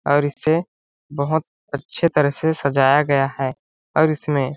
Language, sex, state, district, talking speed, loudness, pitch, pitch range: Hindi, male, Chhattisgarh, Balrampur, 145 wpm, -20 LUFS, 145 Hz, 140-155 Hz